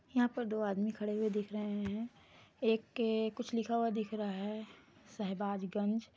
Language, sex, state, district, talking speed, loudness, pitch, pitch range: Hindi, female, Jharkhand, Sahebganj, 175 wpm, -37 LUFS, 215 Hz, 210-225 Hz